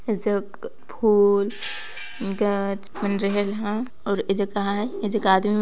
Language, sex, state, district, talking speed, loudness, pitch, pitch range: Sadri, female, Chhattisgarh, Jashpur, 130 wpm, -23 LUFS, 205 Hz, 200-210 Hz